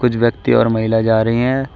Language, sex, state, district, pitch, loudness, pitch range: Hindi, male, Uttar Pradesh, Shamli, 115 Hz, -15 LUFS, 110-125 Hz